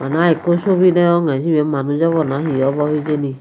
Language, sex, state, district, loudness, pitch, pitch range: Chakma, female, Tripura, Unakoti, -16 LUFS, 150 Hz, 140-170 Hz